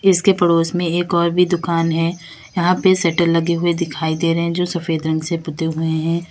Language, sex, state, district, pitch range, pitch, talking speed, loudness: Hindi, female, Uttar Pradesh, Lalitpur, 165-175 Hz, 170 Hz, 230 wpm, -18 LUFS